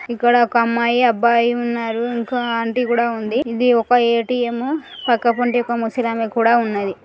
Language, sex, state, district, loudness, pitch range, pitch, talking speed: Telugu, female, Andhra Pradesh, Srikakulam, -18 LUFS, 230-245 Hz, 235 Hz, 180 wpm